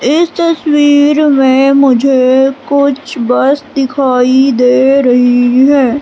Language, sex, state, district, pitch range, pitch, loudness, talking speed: Hindi, female, Madhya Pradesh, Katni, 255-285 Hz, 270 Hz, -9 LUFS, 100 wpm